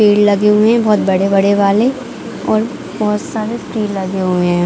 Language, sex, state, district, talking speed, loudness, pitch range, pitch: Hindi, female, Chhattisgarh, Bilaspur, 180 wpm, -14 LUFS, 195-220 Hz, 210 Hz